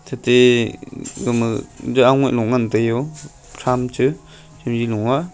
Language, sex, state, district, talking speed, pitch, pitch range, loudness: Wancho, male, Arunachal Pradesh, Longding, 135 wpm, 125 Hz, 115-135 Hz, -18 LUFS